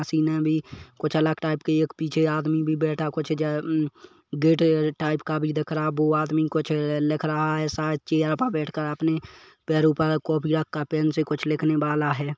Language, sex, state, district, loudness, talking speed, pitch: Hindi, male, Chhattisgarh, Kabirdham, -24 LUFS, 190 wpm, 155 Hz